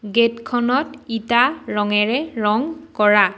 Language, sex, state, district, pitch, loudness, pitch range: Assamese, female, Assam, Sonitpur, 235 Hz, -19 LUFS, 210-270 Hz